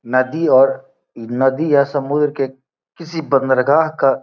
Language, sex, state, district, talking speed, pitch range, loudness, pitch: Hindi, male, Bihar, Gopalganj, 140 wpm, 130-150 Hz, -16 LUFS, 135 Hz